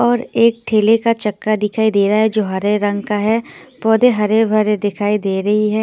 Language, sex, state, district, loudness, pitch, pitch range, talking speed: Hindi, female, Odisha, Sambalpur, -16 LUFS, 215 Hz, 205-225 Hz, 215 wpm